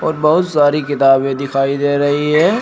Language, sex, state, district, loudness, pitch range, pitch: Hindi, male, Uttar Pradesh, Shamli, -14 LUFS, 135-150 Hz, 145 Hz